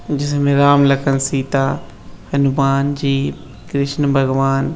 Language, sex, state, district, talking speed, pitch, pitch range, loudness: Hindi, male, Uttar Pradesh, Etah, 115 wpm, 140 Hz, 135-140 Hz, -16 LUFS